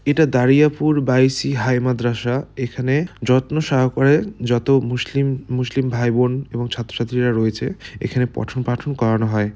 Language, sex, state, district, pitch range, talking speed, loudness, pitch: Bengali, male, West Bengal, Malda, 120-135 Hz, 145 wpm, -19 LUFS, 125 Hz